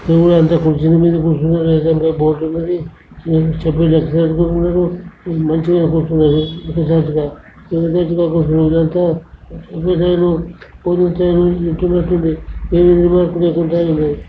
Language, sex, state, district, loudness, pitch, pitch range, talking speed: Telugu, male, Andhra Pradesh, Krishna, -14 LUFS, 165 Hz, 160-175 Hz, 65 wpm